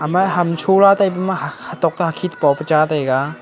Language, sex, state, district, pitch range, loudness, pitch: Wancho, male, Arunachal Pradesh, Longding, 150-185 Hz, -17 LUFS, 170 Hz